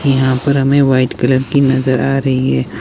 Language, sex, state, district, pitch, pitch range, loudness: Hindi, male, Himachal Pradesh, Shimla, 130 Hz, 130-135 Hz, -13 LUFS